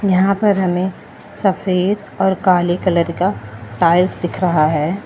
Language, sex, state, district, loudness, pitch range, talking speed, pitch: Hindi, female, Uttar Pradesh, Lalitpur, -16 LUFS, 170-190 Hz, 140 wpm, 185 Hz